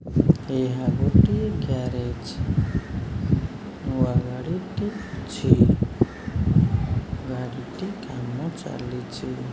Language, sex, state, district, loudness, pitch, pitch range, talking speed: Odia, male, Odisha, Khordha, -25 LUFS, 125 Hz, 110-140 Hz, 55 wpm